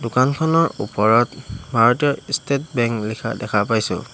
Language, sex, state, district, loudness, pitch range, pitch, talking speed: Assamese, male, Assam, Hailakandi, -19 LUFS, 110-140 Hz, 120 Hz, 115 wpm